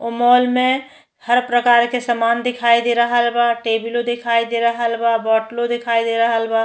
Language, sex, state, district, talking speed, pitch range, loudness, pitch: Bhojpuri, female, Uttar Pradesh, Deoria, 190 wpm, 230-240 Hz, -17 LUFS, 235 Hz